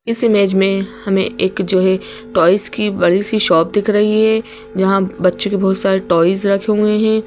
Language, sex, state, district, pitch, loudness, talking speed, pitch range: Hindi, female, Madhya Pradesh, Bhopal, 200 Hz, -15 LUFS, 200 wpm, 190-215 Hz